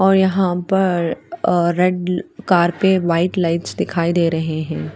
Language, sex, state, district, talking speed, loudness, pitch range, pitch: Hindi, female, Bihar, Patna, 145 wpm, -18 LUFS, 170-190 Hz, 175 Hz